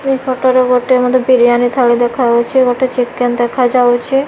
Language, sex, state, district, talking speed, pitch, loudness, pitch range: Odia, female, Odisha, Malkangiri, 170 wpm, 250 Hz, -12 LUFS, 245-255 Hz